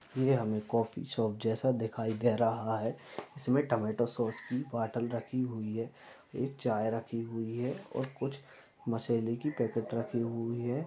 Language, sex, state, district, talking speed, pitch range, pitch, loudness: Hindi, male, Chhattisgarh, Bastar, 165 wpm, 115-130 Hz, 115 Hz, -34 LUFS